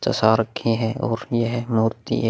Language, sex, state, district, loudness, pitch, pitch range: Hindi, male, Bihar, Vaishali, -22 LUFS, 115 Hz, 115-120 Hz